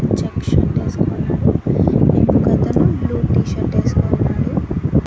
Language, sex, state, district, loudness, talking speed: Telugu, female, Andhra Pradesh, Annamaya, -17 LUFS, 95 wpm